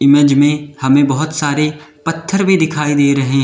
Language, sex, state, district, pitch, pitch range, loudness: Hindi, male, Uttar Pradesh, Lalitpur, 150 Hz, 140-155 Hz, -14 LUFS